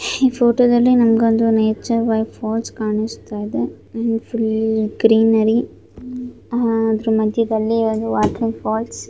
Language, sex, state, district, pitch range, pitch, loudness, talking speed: Kannada, female, Karnataka, Shimoga, 220-230 Hz, 225 Hz, -18 LUFS, 120 wpm